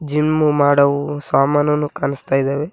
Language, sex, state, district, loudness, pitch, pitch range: Kannada, male, Karnataka, Koppal, -17 LUFS, 145 Hz, 140-150 Hz